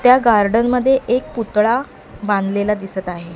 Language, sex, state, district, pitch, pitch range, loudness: Marathi, female, Maharashtra, Mumbai Suburban, 220 Hz, 200-250 Hz, -17 LUFS